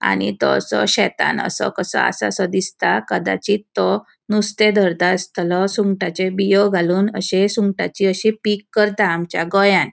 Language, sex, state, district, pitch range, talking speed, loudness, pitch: Konkani, female, Goa, North and South Goa, 185-210 Hz, 135 wpm, -18 LUFS, 195 Hz